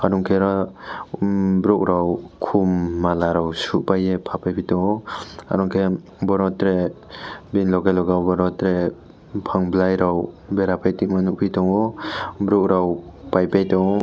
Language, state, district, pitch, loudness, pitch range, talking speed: Kokborok, Tripura, West Tripura, 95 Hz, -20 LUFS, 90-95 Hz, 145 wpm